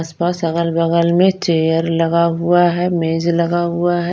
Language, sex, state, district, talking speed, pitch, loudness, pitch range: Hindi, female, Punjab, Kapurthala, 160 wpm, 170 Hz, -16 LUFS, 165-175 Hz